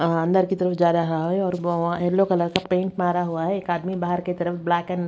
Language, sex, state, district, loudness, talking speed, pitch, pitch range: Hindi, female, Haryana, Rohtak, -23 LUFS, 285 wpm, 175 Hz, 170-185 Hz